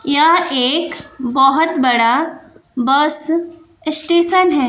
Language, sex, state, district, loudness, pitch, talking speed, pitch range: Hindi, female, Bihar, West Champaran, -14 LUFS, 315 Hz, 90 wpm, 270-330 Hz